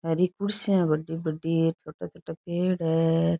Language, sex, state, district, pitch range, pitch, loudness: Rajasthani, female, Rajasthan, Churu, 160-180 Hz, 165 Hz, -26 LUFS